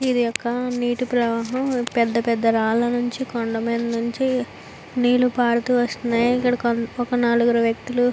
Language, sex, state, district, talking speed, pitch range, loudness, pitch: Telugu, female, Andhra Pradesh, Visakhapatnam, 145 wpm, 235-245 Hz, -21 LUFS, 240 Hz